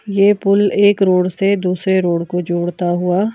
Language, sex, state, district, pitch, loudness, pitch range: Hindi, female, Himachal Pradesh, Shimla, 185 Hz, -15 LUFS, 180-200 Hz